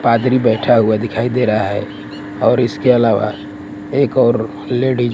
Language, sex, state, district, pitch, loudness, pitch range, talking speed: Hindi, male, Gujarat, Gandhinagar, 115 Hz, -15 LUFS, 100-125 Hz, 165 wpm